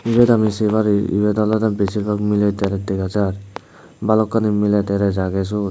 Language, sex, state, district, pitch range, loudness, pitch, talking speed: Chakma, male, Tripura, Dhalai, 100-105 Hz, -18 LUFS, 105 Hz, 180 wpm